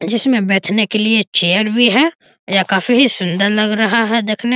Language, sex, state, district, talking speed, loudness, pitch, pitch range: Hindi, male, Bihar, East Champaran, 210 wpm, -14 LUFS, 215 Hz, 195-235 Hz